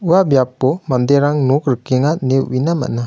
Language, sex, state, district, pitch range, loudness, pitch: Garo, male, Meghalaya, West Garo Hills, 130-150 Hz, -15 LUFS, 135 Hz